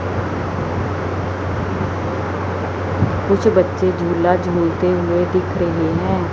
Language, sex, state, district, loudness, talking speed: Hindi, female, Chandigarh, Chandigarh, -19 LUFS, 75 wpm